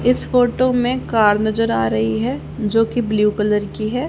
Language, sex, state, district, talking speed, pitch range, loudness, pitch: Hindi, female, Haryana, Charkhi Dadri, 190 wpm, 210-245 Hz, -18 LUFS, 215 Hz